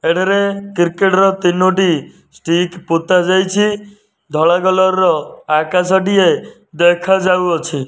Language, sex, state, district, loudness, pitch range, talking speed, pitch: Odia, male, Odisha, Nuapada, -14 LUFS, 175-195 Hz, 90 wpm, 185 Hz